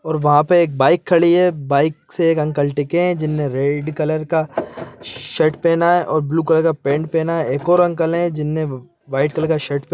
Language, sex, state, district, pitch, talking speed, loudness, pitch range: Hindi, male, Chhattisgarh, Bilaspur, 155 Hz, 225 wpm, -17 LUFS, 145-170 Hz